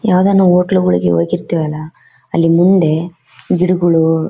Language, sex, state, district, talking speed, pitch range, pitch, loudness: Kannada, female, Karnataka, Bellary, 110 wpm, 160-180 Hz, 170 Hz, -13 LUFS